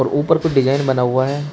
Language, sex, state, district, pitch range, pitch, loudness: Hindi, male, Uttar Pradesh, Shamli, 130-145 Hz, 140 Hz, -17 LUFS